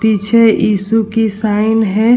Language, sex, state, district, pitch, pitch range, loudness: Hindi, female, Bihar, Vaishali, 220 Hz, 210-225 Hz, -12 LUFS